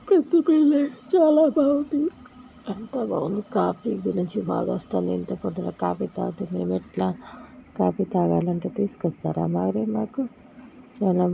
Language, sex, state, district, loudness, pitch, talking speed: Telugu, female, Andhra Pradesh, Guntur, -24 LUFS, 220 Hz, 110 wpm